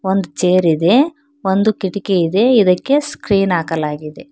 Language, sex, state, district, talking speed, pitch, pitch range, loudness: Kannada, female, Karnataka, Bangalore, 125 wpm, 190 Hz, 175-230 Hz, -15 LUFS